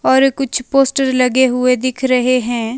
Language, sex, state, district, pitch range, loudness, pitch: Hindi, female, Himachal Pradesh, Shimla, 250-265 Hz, -14 LUFS, 255 Hz